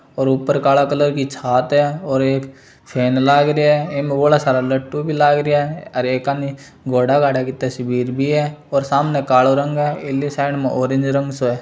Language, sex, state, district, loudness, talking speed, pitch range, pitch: Marwari, male, Rajasthan, Churu, -17 LUFS, 215 wpm, 130-145 Hz, 140 Hz